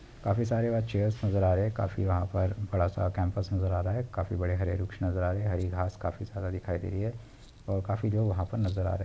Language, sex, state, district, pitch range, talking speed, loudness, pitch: Hindi, male, Chhattisgarh, Kabirdham, 90-105 Hz, 285 wpm, -31 LUFS, 95 Hz